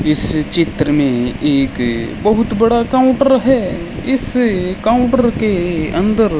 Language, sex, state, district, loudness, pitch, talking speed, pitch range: Hindi, male, Rajasthan, Bikaner, -15 LUFS, 205 Hz, 120 wpm, 150-240 Hz